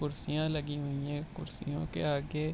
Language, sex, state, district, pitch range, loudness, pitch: Hindi, male, Bihar, Bhagalpur, 145-155 Hz, -35 LUFS, 145 Hz